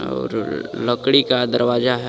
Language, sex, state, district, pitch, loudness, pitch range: Hindi, male, Jharkhand, Garhwa, 120 Hz, -19 LUFS, 120-125 Hz